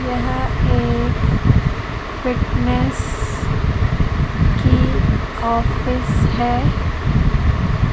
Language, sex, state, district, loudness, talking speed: Hindi, female, Madhya Pradesh, Katni, -18 LUFS, 45 wpm